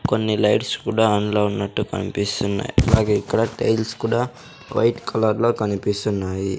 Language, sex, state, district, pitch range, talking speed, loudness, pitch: Telugu, male, Andhra Pradesh, Sri Satya Sai, 105-115 Hz, 125 wpm, -21 LUFS, 105 Hz